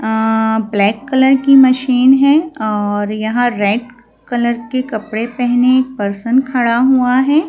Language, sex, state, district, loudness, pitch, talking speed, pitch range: Hindi, female, Madhya Pradesh, Bhopal, -13 LUFS, 245 Hz, 145 wpm, 220-260 Hz